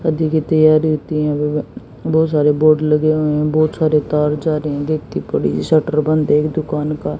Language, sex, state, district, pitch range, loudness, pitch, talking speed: Hindi, female, Haryana, Jhajjar, 150-155 Hz, -16 LUFS, 155 Hz, 215 wpm